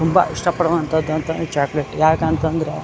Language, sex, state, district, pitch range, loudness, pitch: Kannada, male, Karnataka, Dharwad, 155-165 Hz, -19 LUFS, 160 Hz